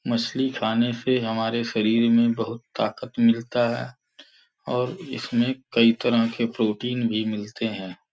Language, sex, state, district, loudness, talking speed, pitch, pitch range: Hindi, male, Uttar Pradesh, Gorakhpur, -24 LUFS, 140 wpm, 115 Hz, 115-120 Hz